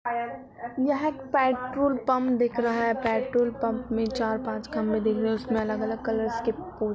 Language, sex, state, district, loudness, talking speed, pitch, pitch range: Hindi, female, Uttar Pradesh, Budaun, -27 LUFS, 175 wpm, 235 Hz, 225-255 Hz